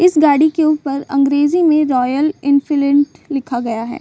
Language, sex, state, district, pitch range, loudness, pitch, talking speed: Hindi, female, Bihar, Saran, 275-305 Hz, -15 LUFS, 285 Hz, 165 wpm